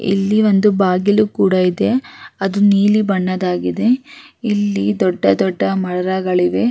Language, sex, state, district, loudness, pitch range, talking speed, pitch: Kannada, female, Karnataka, Raichur, -16 LUFS, 180-215 Hz, 90 wpm, 195 Hz